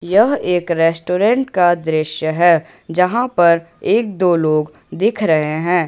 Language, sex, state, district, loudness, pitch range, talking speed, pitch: Hindi, male, Jharkhand, Ranchi, -16 LUFS, 160-185 Hz, 145 wpm, 175 Hz